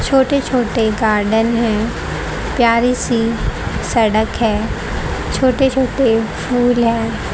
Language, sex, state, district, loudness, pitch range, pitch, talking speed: Hindi, female, Haryana, Rohtak, -16 LUFS, 225-250 Hz, 230 Hz, 100 wpm